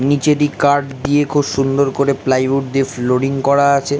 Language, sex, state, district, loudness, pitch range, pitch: Bengali, male, West Bengal, Kolkata, -15 LUFS, 135-145 Hz, 140 Hz